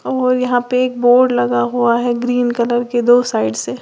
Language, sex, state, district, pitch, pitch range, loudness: Hindi, female, Uttar Pradesh, Lalitpur, 245 Hz, 235-245 Hz, -15 LUFS